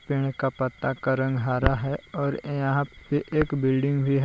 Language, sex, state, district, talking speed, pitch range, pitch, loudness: Hindi, male, Jharkhand, Palamu, 195 wpm, 130-140 Hz, 135 Hz, -26 LUFS